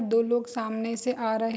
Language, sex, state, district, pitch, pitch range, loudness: Hindi, female, Bihar, Saharsa, 230 Hz, 225-235 Hz, -28 LUFS